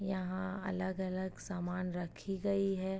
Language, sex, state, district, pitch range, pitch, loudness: Hindi, female, Uttar Pradesh, Ghazipur, 185-195 Hz, 190 Hz, -38 LUFS